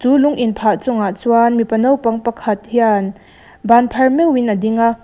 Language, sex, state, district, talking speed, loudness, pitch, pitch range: Mizo, female, Mizoram, Aizawl, 155 wpm, -15 LUFS, 230 Hz, 220-250 Hz